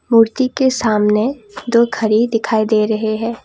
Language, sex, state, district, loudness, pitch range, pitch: Hindi, female, Assam, Kamrup Metropolitan, -15 LUFS, 220-235 Hz, 225 Hz